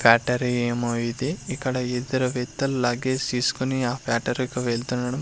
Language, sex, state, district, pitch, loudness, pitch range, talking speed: Telugu, male, Andhra Pradesh, Sri Satya Sai, 125 Hz, -25 LUFS, 120-130 Hz, 140 wpm